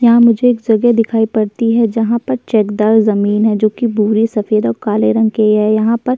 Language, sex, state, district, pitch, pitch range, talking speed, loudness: Hindi, female, Uttar Pradesh, Jyotiba Phule Nagar, 220 Hz, 215-235 Hz, 225 wpm, -13 LUFS